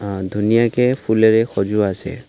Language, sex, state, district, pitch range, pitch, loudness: Assamese, male, Assam, Kamrup Metropolitan, 100-115 Hz, 105 Hz, -17 LUFS